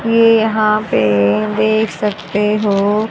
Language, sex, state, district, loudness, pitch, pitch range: Hindi, female, Haryana, Charkhi Dadri, -14 LUFS, 215 Hz, 205-220 Hz